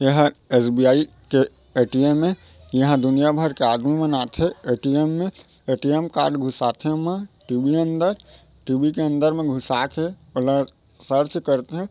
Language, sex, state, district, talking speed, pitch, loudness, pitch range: Chhattisgarhi, male, Chhattisgarh, Raigarh, 145 wpm, 145 Hz, -21 LUFS, 130-160 Hz